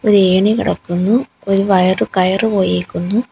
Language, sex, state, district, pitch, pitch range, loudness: Malayalam, female, Kerala, Kollam, 195 Hz, 185-215 Hz, -15 LUFS